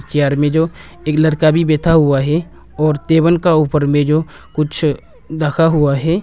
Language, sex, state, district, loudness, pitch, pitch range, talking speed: Hindi, male, Arunachal Pradesh, Longding, -15 LUFS, 155 Hz, 150-160 Hz, 185 wpm